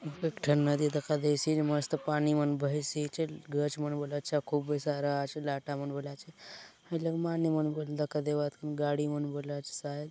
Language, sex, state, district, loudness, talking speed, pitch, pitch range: Halbi, male, Chhattisgarh, Bastar, -32 LUFS, 120 wpm, 150 Hz, 145-155 Hz